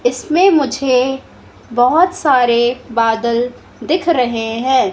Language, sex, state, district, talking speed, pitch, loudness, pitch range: Hindi, female, Madhya Pradesh, Katni, 95 wpm, 250 Hz, -15 LUFS, 235-305 Hz